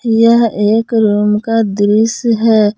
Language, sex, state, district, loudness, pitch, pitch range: Hindi, female, Jharkhand, Palamu, -12 LUFS, 225 Hz, 210-230 Hz